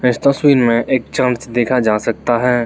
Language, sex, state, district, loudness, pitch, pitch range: Hindi, male, Arunachal Pradesh, Lower Dibang Valley, -15 LUFS, 125 Hz, 120-130 Hz